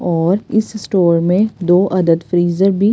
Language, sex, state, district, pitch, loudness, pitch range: Hindi, female, Delhi, New Delhi, 185 Hz, -14 LUFS, 175-200 Hz